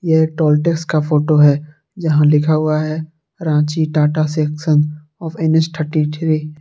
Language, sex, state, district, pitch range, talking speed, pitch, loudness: Hindi, male, Jharkhand, Palamu, 150-160 Hz, 165 wpm, 155 Hz, -16 LUFS